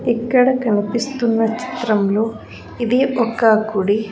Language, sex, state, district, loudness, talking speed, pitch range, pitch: Telugu, female, Andhra Pradesh, Sri Satya Sai, -18 LUFS, 85 wpm, 215-245 Hz, 230 Hz